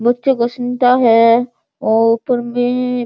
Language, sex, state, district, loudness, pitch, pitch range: Hindi, female, Bihar, Sitamarhi, -14 LUFS, 245 Hz, 230-250 Hz